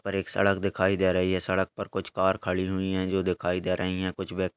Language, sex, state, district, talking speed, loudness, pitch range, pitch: Hindi, male, Uttar Pradesh, Ghazipur, 290 wpm, -27 LUFS, 90-95 Hz, 95 Hz